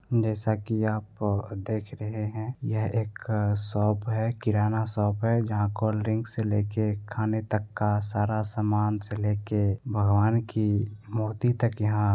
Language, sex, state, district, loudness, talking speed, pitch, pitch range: Hindi, male, Bihar, Begusarai, -28 LUFS, 160 wpm, 110 Hz, 105-110 Hz